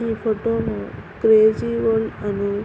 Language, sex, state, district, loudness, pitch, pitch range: Telugu, female, Andhra Pradesh, Guntur, -20 LUFS, 220 Hz, 205-225 Hz